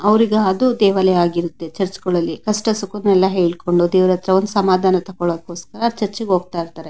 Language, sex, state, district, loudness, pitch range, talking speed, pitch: Kannada, female, Karnataka, Mysore, -17 LUFS, 175-205 Hz, 140 wpm, 185 Hz